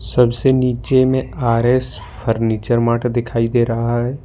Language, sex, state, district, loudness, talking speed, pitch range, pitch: Hindi, male, Jharkhand, Ranchi, -17 LUFS, 155 wpm, 115-130 Hz, 120 Hz